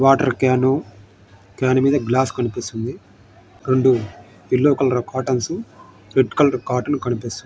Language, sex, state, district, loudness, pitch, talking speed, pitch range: Telugu, male, Andhra Pradesh, Guntur, -19 LUFS, 125 Hz, 120 wpm, 115-130 Hz